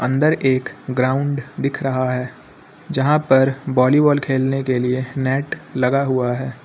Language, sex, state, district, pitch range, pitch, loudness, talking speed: Hindi, male, Uttar Pradesh, Lucknow, 130-140 Hz, 135 Hz, -19 LUFS, 145 wpm